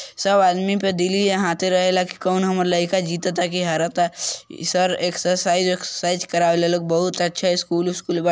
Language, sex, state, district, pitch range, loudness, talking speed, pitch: Bhojpuri, male, Bihar, East Champaran, 175-185 Hz, -20 LUFS, 210 wpm, 180 Hz